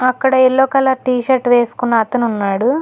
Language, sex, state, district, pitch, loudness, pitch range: Telugu, female, Telangana, Hyderabad, 255 Hz, -14 LUFS, 240-265 Hz